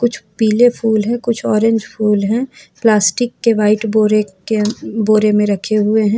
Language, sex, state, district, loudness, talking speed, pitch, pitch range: Hindi, female, Jharkhand, Ranchi, -15 LUFS, 185 wpm, 220 Hz, 210-230 Hz